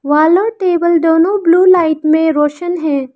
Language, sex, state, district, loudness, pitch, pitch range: Hindi, female, Arunachal Pradesh, Lower Dibang Valley, -12 LUFS, 330 Hz, 310-350 Hz